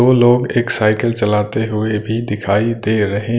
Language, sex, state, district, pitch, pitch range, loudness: Hindi, male, Punjab, Kapurthala, 110 Hz, 105-120 Hz, -16 LUFS